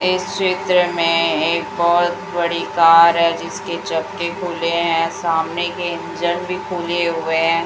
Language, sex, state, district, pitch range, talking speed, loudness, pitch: Hindi, female, Chhattisgarh, Raipur, 170-175 Hz, 140 wpm, -18 LUFS, 170 Hz